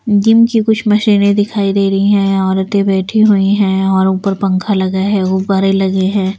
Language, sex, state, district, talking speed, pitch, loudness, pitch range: Hindi, female, Bihar, Patna, 180 wpm, 195 Hz, -12 LUFS, 190-205 Hz